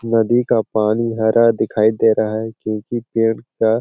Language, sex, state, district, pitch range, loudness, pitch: Hindi, male, Chhattisgarh, Sarguja, 110-115 Hz, -17 LUFS, 115 Hz